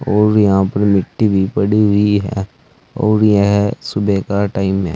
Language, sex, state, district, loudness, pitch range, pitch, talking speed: Hindi, male, Uttar Pradesh, Saharanpur, -15 LUFS, 95-105 Hz, 100 Hz, 170 wpm